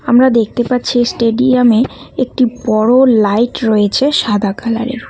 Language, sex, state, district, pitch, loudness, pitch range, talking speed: Bengali, female, West Bengal, Cooch Behar, 240 Hz, -13 LUFS, 225-250 Hz, 115 wpm